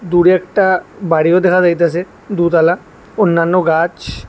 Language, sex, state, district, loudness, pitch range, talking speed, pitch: Bengali, male, Tripura, West Tripura, -13 LUFS, 165-180 Hz, 110 wpm, 175 Hz